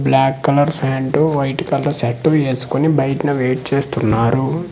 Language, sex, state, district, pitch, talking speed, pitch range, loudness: Telugu, male, Andhra Pradesh, Manyam, 135 Hz, 125 wpm, 130-145 Hz, -17 LUFS